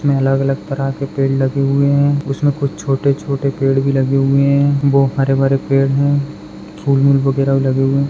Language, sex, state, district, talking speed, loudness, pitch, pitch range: Hindi, male, Maharashtra, Pune, 185 wpm, -15 LUFS, 135 Hz, 135-140 Hz